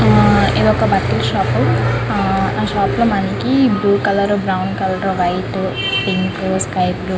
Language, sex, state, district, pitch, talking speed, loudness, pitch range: Telugu, female, Andhra Pradesh, Krishna, 180 Hz, 140 wpm, -16 LUFS, 115-190 Hz